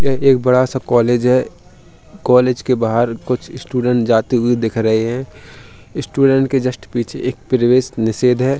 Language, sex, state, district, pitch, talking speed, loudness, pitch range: Hindi, male, Uttar Pradesh, Hamirpur, 125 Hz, 175 wpm, -16 LUFS, 115-130 Hz